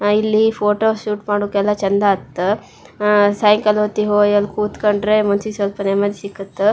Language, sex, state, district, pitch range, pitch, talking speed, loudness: Kannada, female, Karnataka, Shimoga, 200-210 Hz, 205 Hz, 140 wpm, -17 LUFS